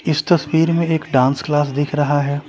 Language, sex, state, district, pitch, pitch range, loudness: Hindi, male, Bihar, Patna, 145 Hz, 145-160 Hz, -17 LUFS